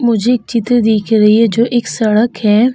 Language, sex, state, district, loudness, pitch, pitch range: Hindi, female, Uttar Pradesh, Hamirpur, -12 LUFS, 230 Hz, 220-240 Hz